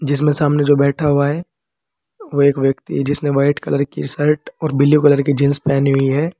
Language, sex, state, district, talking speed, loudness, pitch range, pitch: Hindi, male, Uttar Pradesh, Saharanpur, 215 wpm, -16 LUFS, 140-150 Hz, 145 Hz